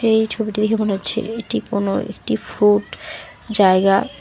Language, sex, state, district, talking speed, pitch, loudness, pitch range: Bengali, female, West Bengal, Alipurduar, 140 wpm, 210 Hz, -18 LUFS, 200-225 Hz